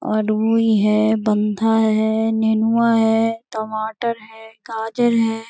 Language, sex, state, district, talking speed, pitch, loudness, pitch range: Hindi, female, Bihar, Gaya, 110 wpm, 220 Hz, -18 LUFS, 220-225 Hz